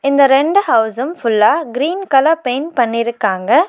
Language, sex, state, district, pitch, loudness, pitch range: Tamil, female, Tamil Nadu, Nilgiris, 270 Hz, -14 LUFS, 235-315 Hz